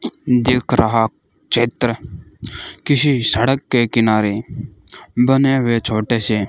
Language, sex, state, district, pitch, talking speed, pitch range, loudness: Hindi, male, Rajasthan, Bikaner, 120 Hz, 110 wpm, 110-130 Hz, -16 LUFS